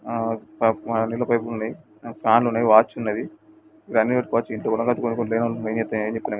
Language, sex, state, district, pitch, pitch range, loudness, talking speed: Telugu, male, Andhra Pradesh, Srikakulam, 115 Hz, 110-120 Hz, -22 LUFS, 115 wpm